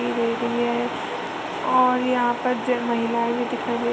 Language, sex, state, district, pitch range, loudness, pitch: Hindi, female, Uttar Pradesh, Jalaun, 235-250 Hz, -23 LUFS, 240 Hz